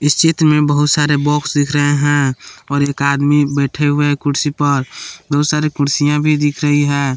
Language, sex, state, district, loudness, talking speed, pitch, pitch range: Hindi, male, Jharkhand, Palamu, -14 LUFS, 200 wpm, 145 Hz, 145-150 Hz